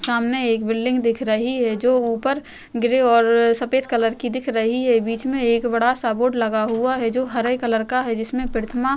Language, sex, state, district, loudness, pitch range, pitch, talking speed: Hindi, female, Uttar Pradesh, Jyotiba Phule Nagar, -20 LUFS, 230-255 Hz, 240 Hz, 220 wpm